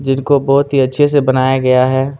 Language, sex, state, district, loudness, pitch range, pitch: Hindi, male, Chhattisgarh, Kabirdham, -13 LUFS, 130-140 Hz, 135 Hz